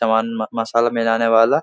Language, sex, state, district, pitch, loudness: Hindi, male, Bihar, Supaul, 115 Hz, -18 LUFS